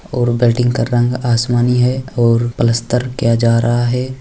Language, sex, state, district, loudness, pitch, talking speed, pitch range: Hindi, male, Bihar, Bhagalpur, -15 LUFS, 120 Hz, 170 wpm, 120-125 Hz